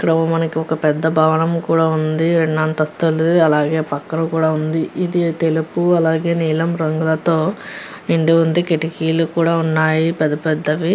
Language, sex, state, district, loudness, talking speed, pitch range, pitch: Telugu, female, Andhra Pradesh, Guntur, -17 LUFS, 135 wpm, 155-165 Hz, 160 Hz